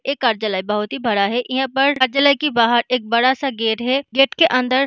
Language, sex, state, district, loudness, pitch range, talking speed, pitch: Hindi, female, Maharashtra, Chandrapur, -17 LUFS, 230-275 Hz, 245 wpm, 255 Hz